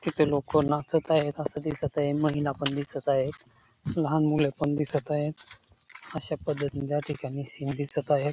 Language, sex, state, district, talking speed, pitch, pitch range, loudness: Marathi, male, Maharashtra, Dhule, 165 wpm, 145 Hz, 140-150 Hz, -27 LUFS